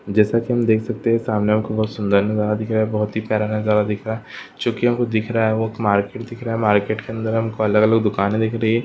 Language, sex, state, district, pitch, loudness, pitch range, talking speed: Hindi, male, Goa, North and South Goa, 110 Hz, -20 LUFS, 105-115 Hz, 285 wpm